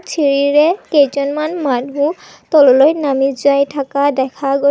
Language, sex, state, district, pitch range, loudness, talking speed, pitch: Assamese, female, Assam, Kamrup Metropolitan, 275-300 Hz, -14 LUFS, 115 wpm, 285 Hz